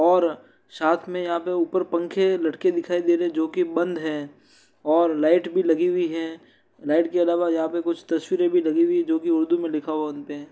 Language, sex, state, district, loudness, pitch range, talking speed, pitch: Hindi, male, Uttar Pradesh, Varanasi, -23 LUFS, 160-180 Hz, 240 wpm, 170 Hz